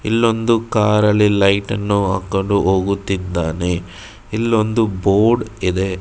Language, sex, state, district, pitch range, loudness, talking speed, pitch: Kannada, male, Karnataka, Bangalore, 95-110 Hz, -17 LUFS, 100 wpm, 100 Hz